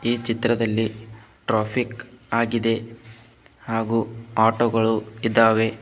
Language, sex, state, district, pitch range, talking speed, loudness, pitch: Kannada, male, Karnataka, Bidar, 110-115 Hz, 80 wpm, -22 LUFS, 115 Hz